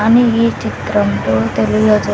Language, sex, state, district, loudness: Telugu, female, Andhra Pradesh, Sri Satya Sai, -14 LUFS